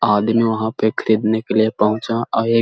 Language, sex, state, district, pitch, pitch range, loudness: Hindi, male, Bihar, Jahanabad, 110 Hz, 110-115 Hz, -18 LUFS